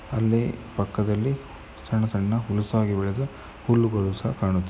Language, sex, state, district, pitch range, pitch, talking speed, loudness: Kannada, male, Karnataka, Mysore, 100-115 Hz, 110 Hz, 115 wpm, -25 LUFS